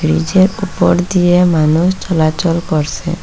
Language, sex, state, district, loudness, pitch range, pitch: Bengali, female, Assam, Hailakandi, -13 LUFS, 160-180 Hz, 175 Hz